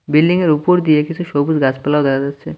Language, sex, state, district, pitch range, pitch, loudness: Bengali, male, West Bengal, Cooch Behar, 140-165 Hz, 150 Hz, -15 LUFS